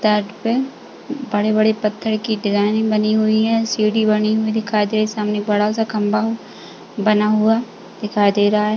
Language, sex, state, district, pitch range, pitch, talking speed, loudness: Hindi, female, Uttar Pradesh, Jalaun, 210-220 Hz, 215 Hz, 180 wpm, -18 LUFS